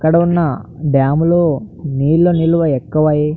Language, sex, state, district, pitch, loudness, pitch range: Telugu, male, Andhra Pradesh, Anantapur, 155 Hz, -15 LUFS, 145-165 Hz